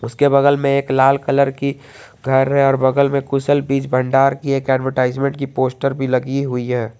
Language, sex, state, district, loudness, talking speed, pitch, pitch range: Hindi, male, Jharkhand, Garhwa, -17 LUFS, 190 wpm, 135 Hz, 130-140 Hz